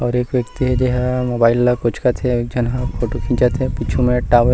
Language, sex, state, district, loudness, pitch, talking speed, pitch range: Chhattisgarhi, male, Chhattisgarh, Rajnandgaon, -18 LUFS, 125 Hz, 275 wpm, 120-125 Hz